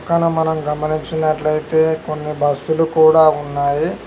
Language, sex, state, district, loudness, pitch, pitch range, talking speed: Telugu, male, Telangana, Hyderabad, -16 LUFS, 155 Hz, 150-160 Hz, 105 wpm